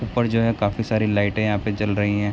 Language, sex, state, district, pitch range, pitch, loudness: Hindi, male, Bihar, Begusarai, 105-115 Hz, 105 Hz, -22 LUFS